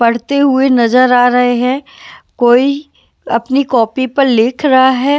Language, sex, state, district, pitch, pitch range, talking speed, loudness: Hindi, female, Bihar, West Champaran, 260 Hz, 245-275 Hz, 150 wpm, -11 LUFS